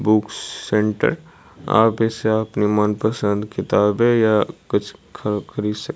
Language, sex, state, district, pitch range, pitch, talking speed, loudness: Hindi, male, Odisha, Malkangiri, 105-110 Hz, 105 Hz, 120 wpm, -20 LUFS